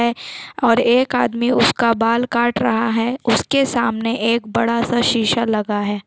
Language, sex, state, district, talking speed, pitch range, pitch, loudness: Hindi, female, Chhattisgarh, Sukma, 160 wpm, 225-240 Hz, 235 Hz, -17 LUFS